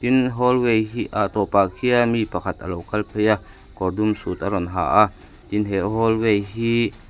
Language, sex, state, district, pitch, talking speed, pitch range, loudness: Mizo, male, Mizoram, Aizawl, 105 Hz, 205 wpm, 100-115 Hz, -21 LUFS